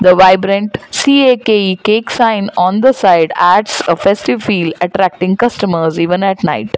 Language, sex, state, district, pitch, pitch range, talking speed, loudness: English, female, Gujarat, Valsad, 195 Hz, 180-220 Hz, 140 wpm, -11 LUFS